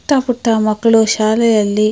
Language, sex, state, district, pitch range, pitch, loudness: Kannada, female, Karnataka, Mysore, 215-235 Hz, 220 Hz, -13 LUFS